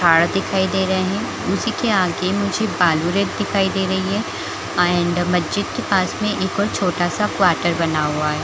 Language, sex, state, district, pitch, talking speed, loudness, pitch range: Hindi, female, Chhattisgarh, Bilaspur, 185 Hz, 180 wpm, -19 LUFS, 175-195 Hz